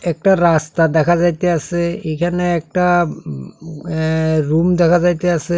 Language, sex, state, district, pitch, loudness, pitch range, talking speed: Bengali, male, Tripura, South Tripura, 170 Hz, -16 LUFS, 160-175 Hz, 95 wpm